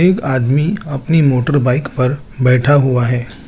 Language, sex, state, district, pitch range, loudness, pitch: Hindi, male, Chandigarh, Chandigarh, 125-145 Hz, -14 LUFS, 135 Hz